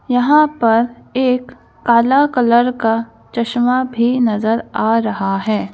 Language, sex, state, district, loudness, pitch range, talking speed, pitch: Hindi, female, Madhya Pradesh, Bhopal, -15 LUFS, 225-250 Hz, 125 wpm, 235 Hz